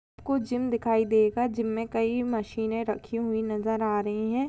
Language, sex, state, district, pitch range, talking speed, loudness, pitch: Hindi, female, Goa, North and South Goa, 220-235 Hz, 185 wpm, -28 LUFS, 225 Hz